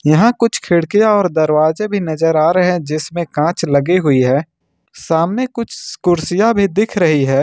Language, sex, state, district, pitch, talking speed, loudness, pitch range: Hindi, male, Jharkhand, Ranchi, 170 Hz, 175 wpm, -15 LUFS, 155-205 Hz